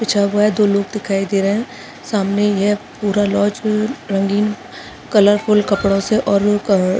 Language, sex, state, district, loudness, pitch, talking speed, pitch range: Hindi, female, Chhattisgarh, Bastar, -16 LUFS, 205 Hz, 180 wpm, 200-210 Hz